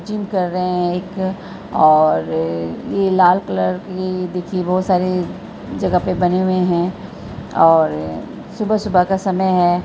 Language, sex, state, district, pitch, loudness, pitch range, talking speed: Hindi, female, Bihar, Araria, 180 Hz, -17 LUFS, 175-190 Hz, 140 wpm